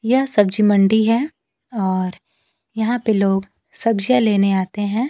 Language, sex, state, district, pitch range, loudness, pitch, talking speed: Hindi, female, Bihar, Kaimur, 195-235 Hz, -18 LUFS, 215 Hz, 140 wpm